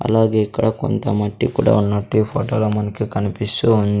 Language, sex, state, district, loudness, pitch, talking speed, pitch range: Telugu, male, Andhra Pradesh, Sri Satya Sai, -18 LUFS, 110 Hz, 165 wpm, 105-115 Hz